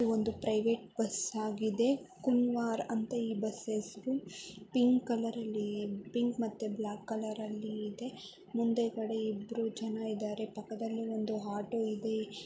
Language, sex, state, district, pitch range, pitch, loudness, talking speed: Kannada, female, Karnataka, Mysore, 215-230 Hz, 220 Hz, -35 LUFS, 125 wpm